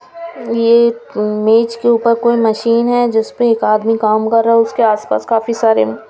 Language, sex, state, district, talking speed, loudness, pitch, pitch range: Hindi, female, Punjab, Kapurthala, 185 wpm, -13 LUFS, 230 Hz, 220-235 Hz